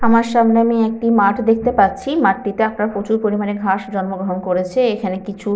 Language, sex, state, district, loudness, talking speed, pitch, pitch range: Bengali, female, West Bengal, Malda, -17 LUFS, 170 wpm, 210 Hz, 195-230 Hz